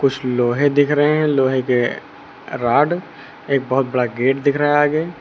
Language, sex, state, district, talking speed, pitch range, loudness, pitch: Hindi, male, Uttar Pradesh, Lucknow, 185 wpm, 130-145 Hz, -17 LUFS, 140 Hz